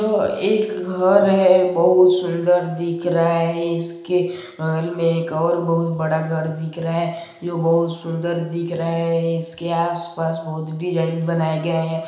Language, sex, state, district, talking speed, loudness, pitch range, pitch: Hindi, male, Chhattisgarh, Balrampur, 175 wpm, -20 LUFS, 165-175 Hz, 170 Hz